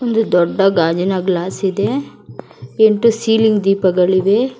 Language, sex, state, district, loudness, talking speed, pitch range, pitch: Kannada, female, Karnataka, Bangalore, -15 LUFS, 105 wpm, 185-225 Hz, 195 Hz